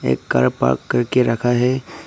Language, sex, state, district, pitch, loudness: Hindi, male, Arunachal Pradesh, Papum Pare, 115 Hz, -18 LUFS